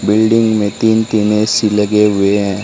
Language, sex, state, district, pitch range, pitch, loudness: Hindi, male, Haryana, Charkhi Dadri, 105-110 Hz, 105 Hz, -13 LUFS